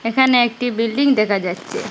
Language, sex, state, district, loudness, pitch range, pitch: Bengali, female, Assam, Hailakandi, -17 LUFS, 215-250 Hz, 235 Hz